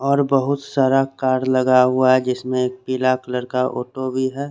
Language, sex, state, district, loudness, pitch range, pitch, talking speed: Hindi, male, Chandigarh, Chandigarh, -19 LUFS, 130-135 Hz, 130 Hz, 185 wpm